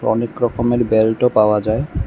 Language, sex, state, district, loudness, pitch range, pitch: Bengali, male, Tripura, West Tripura, -16 LUFS, 110-120 Hz, 115 Hz